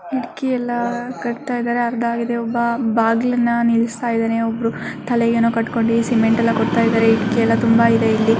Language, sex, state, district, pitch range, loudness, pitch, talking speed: Kannada, female, Karnataka, Mysore, 230-240 Hz, -18 LUFS, 230 Hz, 170 wpm